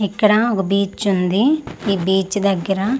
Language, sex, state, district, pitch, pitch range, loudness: Telugu, female, Andhra Pradesh, Manyam, 200 Hz, 190-210 Hz, -18 LUFS